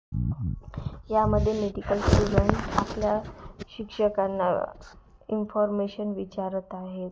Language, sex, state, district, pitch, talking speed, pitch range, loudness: Marathi, female, Maharashtra, Gondia, 205 Hz, 65 wpm, 190-215 Hz, -27 LUFS